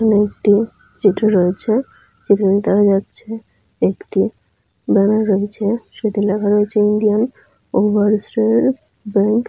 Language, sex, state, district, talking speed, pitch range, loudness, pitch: Bengali, female, West Bengal, Jalpaiguri, 105 wpm, 205-220 Hz, -16 LUFS, 210 Hz